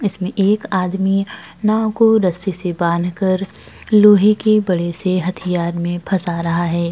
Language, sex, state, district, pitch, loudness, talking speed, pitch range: Hindi, female, Uttar Pradesh, Jalaun, 185 Hz, -17 LUFS, 145 wpm, 175-205 Hz